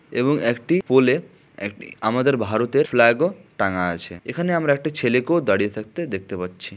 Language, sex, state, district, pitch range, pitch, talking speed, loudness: Bengali, male, West Bengal, Malda, 100-155 Hz, 125 Hz, 160 wpm, -21 LUFS